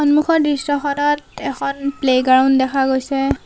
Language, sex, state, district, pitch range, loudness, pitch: Assamese, female, Assam, Sonitpur, 265-290 Hz, -17 LUFS, 275 Hz